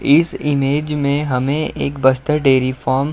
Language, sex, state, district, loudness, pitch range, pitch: Hindi, male, Uttar Pradesh, Budaun, -17 LUFS, 130-150 Hz, 140 Hz